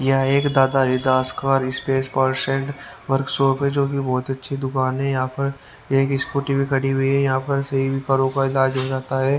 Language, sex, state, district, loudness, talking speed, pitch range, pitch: Hindi, male, Haryana, Rohtak, -20 LUFS, 205 wpm, 130-140 Hz, 135 Hz